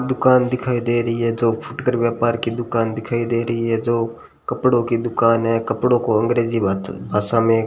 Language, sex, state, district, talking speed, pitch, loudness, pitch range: Hindi, male, Rajasthan, Bikaner, 205 wpm, 115 Hz, -19 LUFS, 115-120 Hz